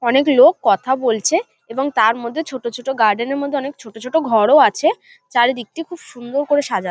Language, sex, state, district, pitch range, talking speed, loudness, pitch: Bengali, female, West Bengal, North 24 Parganas, 235-295 Hz, 190 wpm, -17 LUFS, 265 Hz